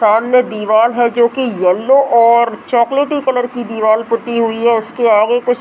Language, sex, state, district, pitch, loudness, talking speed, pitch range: Hindi, female, Bihar, Muzaffarpur, 235 Hz, -13 LUFS, 195 wpm, 225-245 Hz